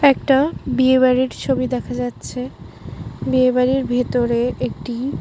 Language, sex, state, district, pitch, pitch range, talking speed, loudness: Bengali, female, West Bengal, Malda, 255 Hz, 245-260 Hz, 125 wpm, -19 LUFS